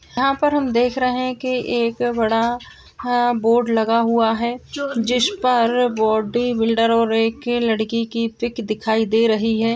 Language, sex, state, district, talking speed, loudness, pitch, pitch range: Hindi, female, Bihar, Purnia, 160 wpm, -19 LUFS, 235 Hz, 225-245 Hz